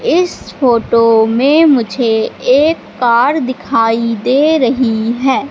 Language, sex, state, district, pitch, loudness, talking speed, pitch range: Hindi, female, Madhya Pradesh, Katni, 250 Hz, -12 LUFS, 110 wpm, 230-290 Hz